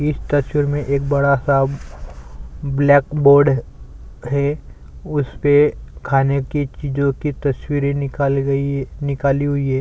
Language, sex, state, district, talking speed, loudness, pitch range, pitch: Hindi, male, Chhattisgarh, Sukma, 115 wpm, -18 LUFS, 135-145 Hz, 140 Hz